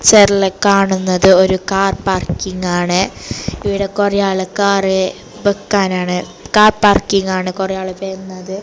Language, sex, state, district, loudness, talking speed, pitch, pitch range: Malayalam, female, Kerala, Kasaragod, -14 LUFS, 110 wpm, 190 Hz, 185-200 Hz